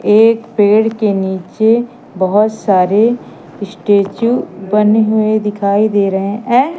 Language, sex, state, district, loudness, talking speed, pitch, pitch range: Hindi, female, Madhya Pradesh, Katni, -13 LUFS, 125 wpm, 215 Hz, 200-225 Hz